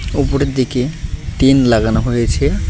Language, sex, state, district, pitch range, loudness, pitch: Bengali, male, West Bengal, Cooch Behar, 110-135 Hz, -15 LUFS, 125 Hz